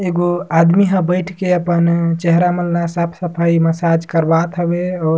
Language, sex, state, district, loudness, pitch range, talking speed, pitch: Surgujia, male, Chhattisgarh, Sarguja, -15 LUFS, 170-180 Hz, 150 wpm, 170 Hz